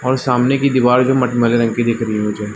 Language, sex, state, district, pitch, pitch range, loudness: Hindi, male, Chhattisgarh, Balrampur, 125 Hz, 115-130 Hz, -15 LUFS